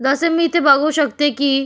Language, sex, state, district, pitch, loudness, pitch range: Marathi, female, Maharashtra, Solapur, 290 Hz, -15 LUFS, 275-325 Hz